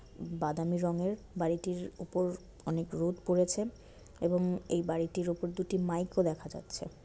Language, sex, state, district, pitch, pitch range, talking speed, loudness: Bengali, female, West Bengal, Malda, 175 Hz, 170-180 Hz, 145 wpm, -34 LUFS